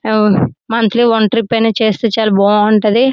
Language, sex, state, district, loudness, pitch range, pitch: Telugu, female, Andhra Pradesh, Srikakulam, -12 LUFS, 215-230 Hz, 220 Hz